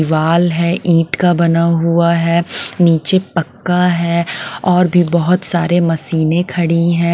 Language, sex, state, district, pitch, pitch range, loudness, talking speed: Hindi, female, Bihar, West Champaran, 170 Hz, 165-175 Hz, -14 LUFS, 145 wpm